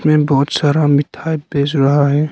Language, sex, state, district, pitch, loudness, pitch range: Hindi, male, Arunachal Pradesh, Lower Dibang Valley, 145 Hz, -15 LUFS, 140-155 Hz